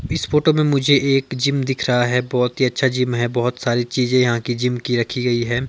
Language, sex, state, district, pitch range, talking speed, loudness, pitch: Hindi, male, Himachal Pradesh, Shimla, 120-135 Hz, 255 wpm, -18 LUFS, 125 Hz